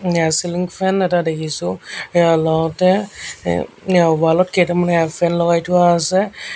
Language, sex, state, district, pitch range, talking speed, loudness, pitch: Assamese, male, Assam, Sonitpur, 165-185 Hz, 145 wpm, -17 LUFS, 175 Hz